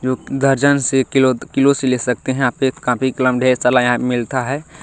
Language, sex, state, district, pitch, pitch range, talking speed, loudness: Hindi, male, Bihar, Bhagalpur, 130 Hz, 125-135 Hz, 210 wpm, -16 LUFS